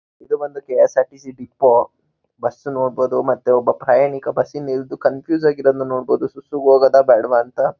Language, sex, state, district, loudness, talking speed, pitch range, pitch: Kannada, male, Karnataka, Mysore, -17 LUFS, 145 wpm, 130-145 Hz, 135 Hz